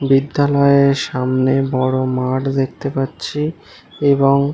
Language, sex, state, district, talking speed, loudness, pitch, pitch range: Bengali, male, West Bengal, Malda, 95 wpm, -17 LUFS, 135 Hz, 130-140 Hz